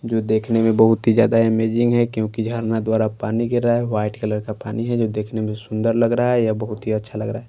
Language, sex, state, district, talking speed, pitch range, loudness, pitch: Hindi, male, Maharashtra, Washim, 265 wpm, 110-115 Hz, -20 LUFS, 110 Hz